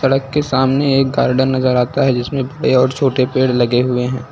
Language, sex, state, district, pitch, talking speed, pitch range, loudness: Hindi, male, Uttar Pradesh, Lucknow, 130 Hz, 220 wpm, 125-135 Hz, -15 LUFS